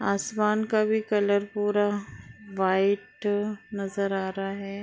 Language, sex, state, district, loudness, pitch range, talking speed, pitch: Hindi, female, Uttar Pradesh, Deoria, -27 LUFS, 195-210 Hz, 125 wpm, 200 Hz